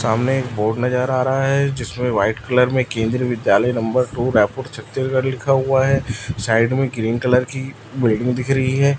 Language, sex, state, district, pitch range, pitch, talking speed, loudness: Hindi, male, Chhattisgarh, Raipur, 115-130 Hz, 125 Hz, 195 wpm, -19 LUFS